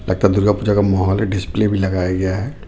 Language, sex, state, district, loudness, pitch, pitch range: Hindi, male, Jharkhand, Ranchi, -17 LUFS, 100 Hz, 95-105 Hz